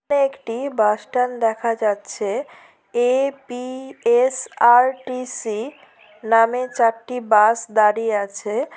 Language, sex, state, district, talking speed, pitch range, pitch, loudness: Bengali, female, West Bengal, Purulia, 75 wpm, 220-255 Hz, 235 Hz, -19 LUFS